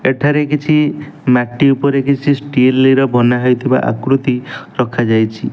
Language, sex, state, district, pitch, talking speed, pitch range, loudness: Odia, male, Odisha, Nuapada, 135 Hz, 110 wpm, 125-145 Hz, -14 LUFS